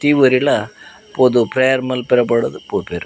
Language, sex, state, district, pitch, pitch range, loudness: Tulu, male, Karnataka, Dakshina Kannada, 130 Hz, 120-130 Hz, -16 LUFS